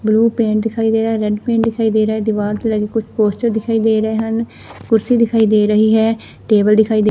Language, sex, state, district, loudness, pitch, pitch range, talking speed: Punjabi, female, Punjab, Fazilka, -15 LUFS, 220 Hz, 215-225 Hz, 235 wpm